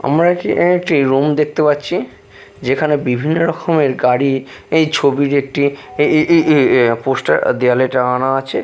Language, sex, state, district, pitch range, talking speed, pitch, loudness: Bengali, male, Bihar, Katihar, 130-155 Hz, 140 wpm, 140 Hz, -15 LUFS